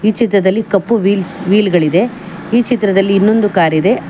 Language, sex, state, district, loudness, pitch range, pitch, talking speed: Kannada, female, Karnataka, Bangalore, -13 LUFS, 185-220 Hz, 200 Hz, 130 wpm